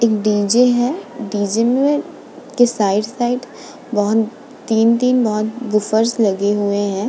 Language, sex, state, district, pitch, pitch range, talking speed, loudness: Hindi, female, Uttar Pradesh, Muzaffarnagar, 225 Hz, 210-245 Hz, 125 wpm, -17 LUFS